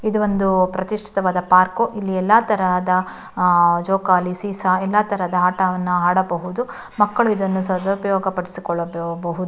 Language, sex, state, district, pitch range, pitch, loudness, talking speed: Kannada, female, Karnataka, Shimoga, 180-200 Hz, 185 Hz, -19 LUFS, 100 wpm